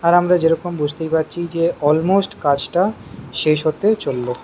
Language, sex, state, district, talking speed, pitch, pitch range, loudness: Bengali, male, West Bengal, Kolkata, 150 wpm, 165 Hz, 155-175 Hz, -18 LUFS